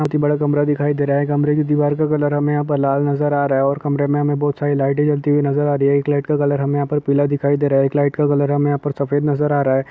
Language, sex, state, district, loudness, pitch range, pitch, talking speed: Hindi, male, Chhattisgarh, Kabirdham, -17 LUFS, 140-145 Hz, 145 Hz, 335 wpm